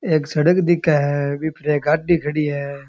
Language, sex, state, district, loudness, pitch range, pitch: Rajasthani, male, Rajasthan, Churu, -19 LUFS, 145-160 Hz, 150 Hz